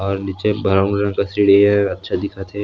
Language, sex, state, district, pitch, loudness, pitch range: Chhattisgarhi, male, Chhattisgarh, Sarguja, 100 Hz, -17 LUFS, 95-100 Hz